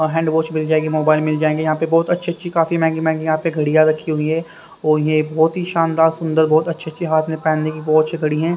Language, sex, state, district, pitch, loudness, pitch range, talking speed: Hindi, male, Haryana, Rohtak, 160 Hz, -17 LUFS, 155-165 Hz, 265 wpm